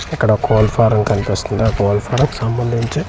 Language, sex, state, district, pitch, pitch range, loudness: Telugu, male, Andhra Pradesh, Manyam, 110 Hz, 105-120 Hz, -16 LUFS